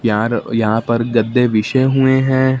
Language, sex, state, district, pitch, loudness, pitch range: Hindi, male, Punjab, Fazilka, 120 Hz, -15 LUFS, 115-130 Hz